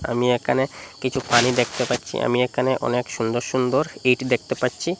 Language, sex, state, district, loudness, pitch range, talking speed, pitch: Bengali, male, Assam, Hailakandi, -22 LUFS, 120-130 Hz, 170 wpm, 125 Hz